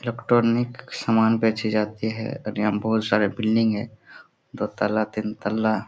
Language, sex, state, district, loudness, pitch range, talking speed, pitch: Hindi, male, Jharkhand, Sahebganj, -23 LUFS, 105-115 Hz, 155 wpm, 110 Hz